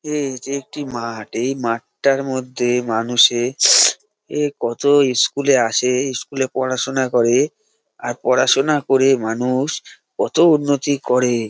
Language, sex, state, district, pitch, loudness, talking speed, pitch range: Bengali, male, West Bengal, North 24 Parganas, 130 Hz, -17 LUFS, 125 wpm, 120-140 Hz